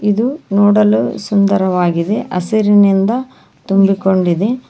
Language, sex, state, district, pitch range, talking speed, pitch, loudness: Kannada, female, Karnataka, Koppal, 195-215 Hz, 65 wpm, 200 Hz, -13 LUFS